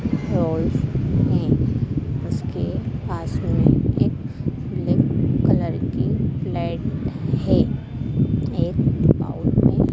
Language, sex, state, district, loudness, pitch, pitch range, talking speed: Hindi, female, Madhya Pradesh, Dhar, -21 LUFS, 130 Hz, 125-140 Hz, 80 wpm